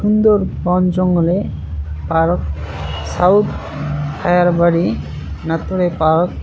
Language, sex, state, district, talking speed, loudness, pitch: Bengali, male, West Bengal, Cooch Behar, 85 wpm, -17 LUFS, 165 Hz